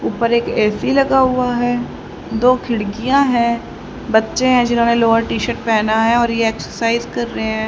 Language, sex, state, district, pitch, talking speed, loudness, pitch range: Hindi, female, Haryana, Jhajjar, 235 Hz, 180 wpm, -16 LUFS, 225-245 Hz